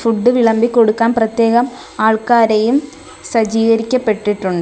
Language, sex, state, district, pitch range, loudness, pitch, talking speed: Malayalam, female, Kerala, Kollam, 220-240 Hz, -14 LUFS, 230 Hz, 80 wpm